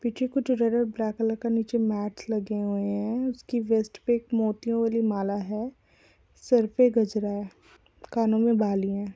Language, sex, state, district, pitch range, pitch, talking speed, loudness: Hindi, female, Chhattisgarh, Rajnandgaon, 205-235 Hz, 225 Hz, 185 wpm, -26 LUFS